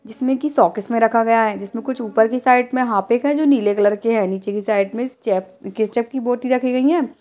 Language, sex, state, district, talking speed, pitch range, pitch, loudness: Hindi, female, Uttarakhand, Uttarkashi, 265 wpm, 210-255 Hz, 230 Hz, -18 LUFS